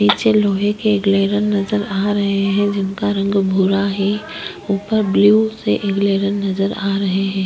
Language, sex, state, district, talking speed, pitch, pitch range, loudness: Hindi, female, Chhattisgarh, Korba, 145 wpm, 200 Hz, 195-205 Hz, -17 LUFS